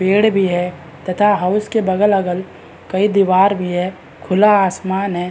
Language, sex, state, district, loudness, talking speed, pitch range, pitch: Hindi, male, Bihar, Madhepura, -16 LUFS, 160 wpm, 180-200 Hz, 190 Hz